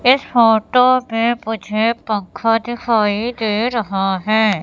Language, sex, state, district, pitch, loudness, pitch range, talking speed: Hindi, female, Madhya Pradesh, Katni, 225 Hz, -17 LUFS, 215-240 Hz, 115 wpm